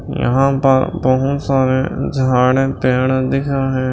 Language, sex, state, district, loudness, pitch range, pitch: Hindi, male, Maharashtra, Washim, -16 LUFS, 130-135 Hz, 130 Hz